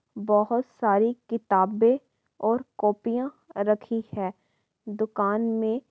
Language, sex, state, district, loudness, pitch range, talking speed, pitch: Hindi, female, Uttar Pradesh, Varanasi, -26 LUFS, 210-235 Hz, 100 wpm, 220 Hz